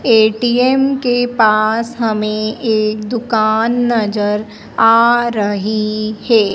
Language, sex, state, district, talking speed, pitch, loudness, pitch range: Hindi, female, Madhya Pradesh, Dhar, 90 wpm, 220 Hz, -14 LUFS, 215-240 Hz